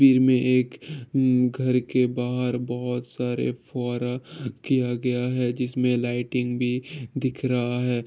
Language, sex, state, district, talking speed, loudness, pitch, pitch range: Hindi, male, Bihar, Gopalganj, 140 wpm, -25 LUFS, 125 Hz, 125-130 Hz